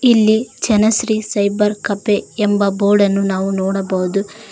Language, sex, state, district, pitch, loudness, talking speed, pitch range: Kannada, female, Karnataka, Koppal, 205 Hz, -16 LUFS, 105 wpm, 195-215 Hz